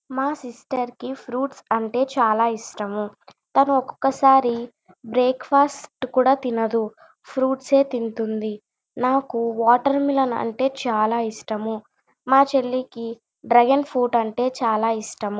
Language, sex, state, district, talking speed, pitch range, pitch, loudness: Telugu, female, Andhra Pradesh, Chittoor, 115 wpm, 225-265 Hz, 245 Hz, -21 LUFS